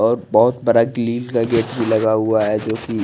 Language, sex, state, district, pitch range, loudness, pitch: Hindi, male, Chandigarh, Chandigarh, 110-120 Hz, -17 LUFS, 115 Hz